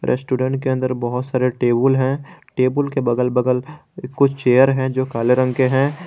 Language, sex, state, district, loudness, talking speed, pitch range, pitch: Hindi, male, Jharkhand, Garhwa, -18 LUFS, 190 wpm, 125-135 Hz, 130 Hz